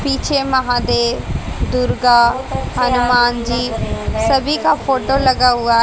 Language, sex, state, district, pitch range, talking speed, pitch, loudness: Hindi, female, Haryana, Jhajjar, 235-265 Hz, 105 wpm, 245 Hz, -16 LUFS